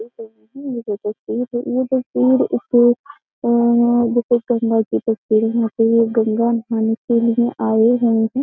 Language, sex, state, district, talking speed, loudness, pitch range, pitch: Hindi, female, Uttar Pradesh, Jyotiba Phule Nagar, 140 wpm, -17 LUFS, 225-240 Hz, 230 Hz